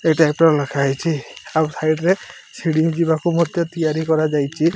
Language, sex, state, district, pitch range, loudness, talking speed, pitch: Odia, male, Odisha, Malkangiri, 155-165 Hz, -19 LUFS, 165 wpm, 160 Hz